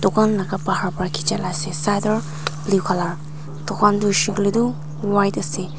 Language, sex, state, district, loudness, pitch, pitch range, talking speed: Nagamese, female, Nagaland, Dimapur, -21 LUFS, 190 Hz, 160-205 Hz, 195 wpm